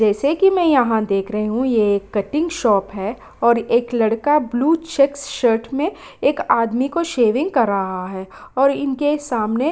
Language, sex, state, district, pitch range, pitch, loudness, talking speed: Hindi, female, Bihar, Kishanganj, 215-290 Hz, 240 Hz, -18 LUFS, 185 wpm